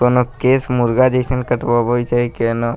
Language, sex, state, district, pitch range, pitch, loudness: Maithili, male, Bihar, Sitamarhi, 120-125 Hz, 120 Hz, -16 LUFS